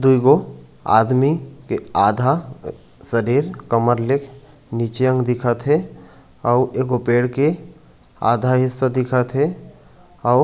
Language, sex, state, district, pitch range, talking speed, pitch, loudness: Chhattisgarhi, male, Chhattisgarh, Raigarh, 120-140 Hz, 125 wpm, 130 Hz, -19 LUFS